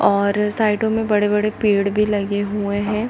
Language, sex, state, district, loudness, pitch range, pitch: Hindi, female, Chhattisgarh, Bilaspur, -19 LUFS, 205-210 Hz, 210 Hz